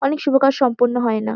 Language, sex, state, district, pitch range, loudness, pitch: Bengali, female, West Bengal, Kolkata, 235-275 Hz, -17 LUFS, 255 Hz